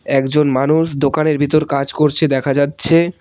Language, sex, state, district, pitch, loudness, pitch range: Bengali, male, West Bengal, Cooch Behar, 145 Hz, -15 LUFS, 140-155 Hz